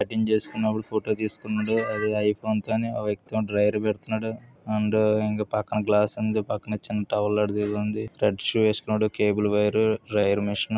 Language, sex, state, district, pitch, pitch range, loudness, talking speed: Telugu, male, Andhra Pradesh, Visakhapatnam, 105 Hz, 105-110 Hz, -25 LUFS, 95 wpm